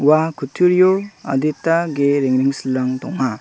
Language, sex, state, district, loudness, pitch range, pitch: Garo, male, Meghalaya, South Garo Hills, -18 LUFS, 135-170 Hz, 145 Hz